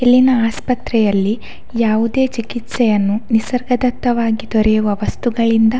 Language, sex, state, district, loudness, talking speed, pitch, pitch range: Kannada, female, Karnataka, Dakshina Kannada, -16 LUFS, 85 wpm, 230 Hz, 220-245 Hz